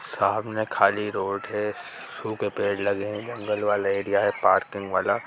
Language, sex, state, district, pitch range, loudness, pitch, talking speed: Hindi, female, Bihar, Darbhanga, 100-105 Hz, -25 LUFS, 100 Hz, 170 wpm